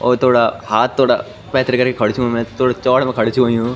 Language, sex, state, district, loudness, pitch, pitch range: Garhwali, male, Uttarakhand, Tehri Garhwal, -16 LUFS, 125 Hz, 115-125 Hz